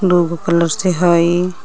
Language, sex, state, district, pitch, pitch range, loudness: Magahi, female, Jharkhand, Palamu, 175 Hz, 170-180 Hz, -15 LUFS